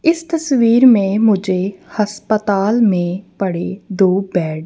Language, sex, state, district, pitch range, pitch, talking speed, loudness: Hindi, female, Punjab, Kapurthala, 190-220 Hz, 200 Hz, 130 wpm, -15 LUFS